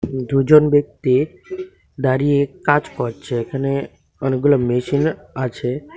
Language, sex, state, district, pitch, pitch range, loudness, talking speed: Bengali, male, Tripura, West Tripura, 140 Hz, 130-145 Hz, -18 LUFS, 90 wpm